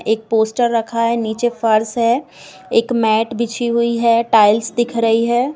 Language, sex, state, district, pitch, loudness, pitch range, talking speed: Hindi, female, Bihar, East Champaran, 230 Hz, -16 LUFS, 225-235 Hz, 205 wpm